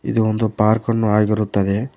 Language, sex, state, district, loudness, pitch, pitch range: Kannada, male, Karnataka, Koppal, -18 LUFS, 110 Hz, 105-110 Hz